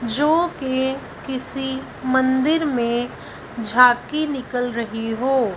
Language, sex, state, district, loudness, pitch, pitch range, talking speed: Hindi, female, Punjab, Fazilka, -21 LUFS, 260 Hz, 240-270 Hz, 95 wpm